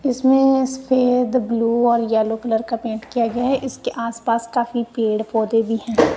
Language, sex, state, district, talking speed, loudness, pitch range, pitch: Hindi, female, Punjab, Kapurthala, 185 wpm, -19 LUFS, 225-255 Hz, 235 Hz